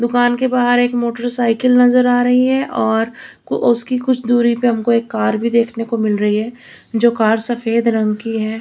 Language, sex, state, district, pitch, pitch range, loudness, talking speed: Hindi, female, Chandigarh, Chandigarh, 235 Hz, 225-245 Hz, -16 LUFS, 200 wpm